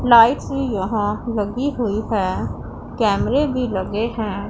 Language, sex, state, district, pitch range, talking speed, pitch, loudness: Hindi, female, Punjab, Pathankot, 205-245 Hz, 135 wpm, 225 Hz, -20 LUFS